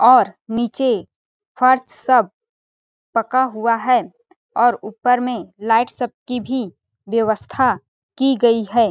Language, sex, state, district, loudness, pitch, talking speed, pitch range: Hindi, female, Chhattisgarh, Balrampur, -18 LUFS, 240 Hz, 115 wpm, 225-260 Hz